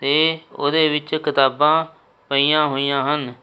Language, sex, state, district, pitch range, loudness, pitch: Punjabi, male, Punjab, Kapurthala, 140-155 Hz, -18 LUFS, 150 Hz